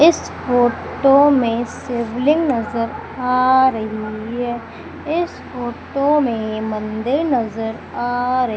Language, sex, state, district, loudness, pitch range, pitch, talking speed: Hindi, female, Madhya Pradesh, Umaria, -19 LUFS, 225-270 Hz, 245 Hz, 105 wpm